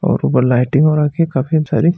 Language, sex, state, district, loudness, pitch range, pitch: Marwari, male, Rajasthan, Churu, -14 LUFS, 130-160 Hz, 150 Hz